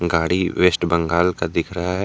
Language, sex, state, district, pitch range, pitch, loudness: Hindi, male, Jharkhand, Deoghar, 85-90 Hz, 85 Hz, -19 LUFS